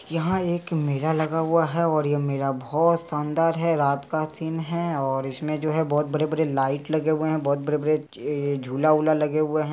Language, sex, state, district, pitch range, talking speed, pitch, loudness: Hindi, male, Bihar, Araria, 145-160 Hz, 205 wpm, 155 Hz, -24 LUFS